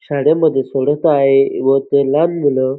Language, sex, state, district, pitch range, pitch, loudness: Marathi, male, Maharashtra, Dhule, 135-150 Hz, 140 Hz, -14 LUFS